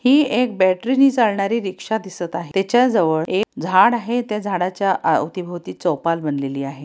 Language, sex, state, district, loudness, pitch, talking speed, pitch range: Marathi, female, Maharashtra, Pune, -19 LUFS, 190 Hz, 165 wpm, 175-235 Hz